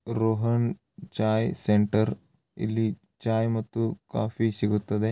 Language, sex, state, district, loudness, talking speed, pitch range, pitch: Kannada, male, Karnataka, Raichur, -27 LUFS, 95 wpm, 110-115 Hz, 110 Hz